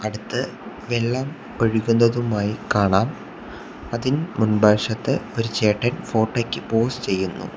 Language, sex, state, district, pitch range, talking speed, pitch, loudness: Malayalam, male, Kerala, Kollam, 110-120 Hz, 95 wpm, 115 Hz, -22 LUFS